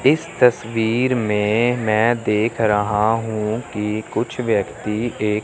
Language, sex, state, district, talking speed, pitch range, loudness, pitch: Hindi, male, Chandigarh, Chandigarh, 120 wpm, 105-120 Hz, -19 LUFS, 110 Hz